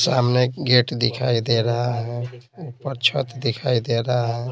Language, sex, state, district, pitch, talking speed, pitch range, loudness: Hindi, male, Bihar, Patna, 125 Hz, 160 wpm, 120-125 Hz, -21 LUFS